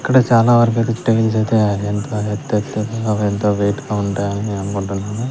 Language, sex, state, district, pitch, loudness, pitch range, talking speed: Telugu, male, Andhra Pradesh, Sri Satya Sai, 105 Hz, -17 LUFS, 100-115 Hz, 145 wpm